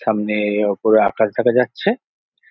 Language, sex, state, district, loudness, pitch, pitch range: Bengali, male, West Bengal, Jhargram, -17 LUFS, 105 Hz, 105-110 Hz